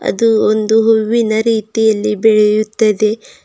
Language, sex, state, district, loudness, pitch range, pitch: Kannada, female, Karnataka, Bidar, -13 LUFS, 215-225 Hz, 220 Hz